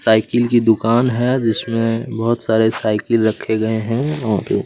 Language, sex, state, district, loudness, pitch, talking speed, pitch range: Hindi, male, Chhattisgarh, Kabirdham, -17 LUFS, 115 Hz, 155 wpm, 110-120 Hz